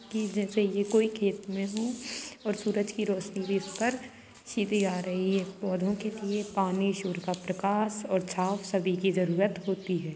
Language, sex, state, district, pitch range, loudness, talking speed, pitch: Hindi, female, Bihar, Sitamarhi, 190-210 Hz, -30 LUFS, 185 wpm, 200 Hz